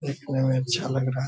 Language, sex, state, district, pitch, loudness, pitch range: Hindi, male, Bihar, Purnia, 130 Hz, -26 LUFS, 130-140 Hz